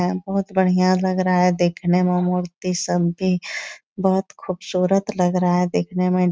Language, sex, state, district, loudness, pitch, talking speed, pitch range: Hindi, female, Bihar, Jahanabad, -20 LUFS, 180 Hz, 180 wpm, 180-185 Hz